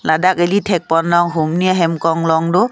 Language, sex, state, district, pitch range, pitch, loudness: Karbi, female, Assam, Karbi Anglong, 165-180 Hz, 170 Hz, -15 LUFS